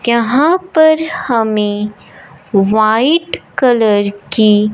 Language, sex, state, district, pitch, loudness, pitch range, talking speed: Hindi, male, Punjab, Fazilka, 220 Hz, -13 LUFS, 210-285 Hz, 75 wpm